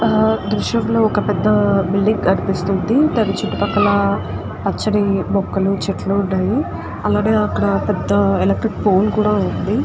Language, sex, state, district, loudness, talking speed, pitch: Telugu, female, Andhra Pradesh, Guntur, -17 LUFS, 130 wpm, 195 Hz